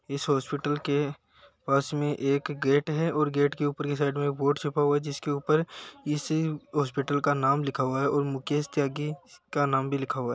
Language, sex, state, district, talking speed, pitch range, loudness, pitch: Hindi, male, Uttar Pradesh, Muzaffarnagar, 220 wpm, 140-150 Hz, -28 LUFS, 145 Hz